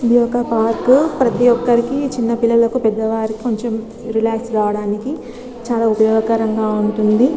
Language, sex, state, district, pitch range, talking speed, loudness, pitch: Telugu, female, Telangana, Nalgonda, 220-245 Hz, 130 wpm, -16 LUFS, 230 Hz